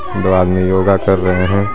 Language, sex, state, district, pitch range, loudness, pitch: Hindi, male, Jharkhand, Garhwa, 90-100 Hz, -14 LUFS, 95 Hz